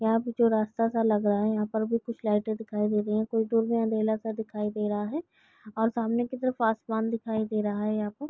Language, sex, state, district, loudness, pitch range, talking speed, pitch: Hindi, female, Uttar Pradesh, Gorakhpur, -28 LUFS, 215-230 Hz, 260 wpm, 220 Hz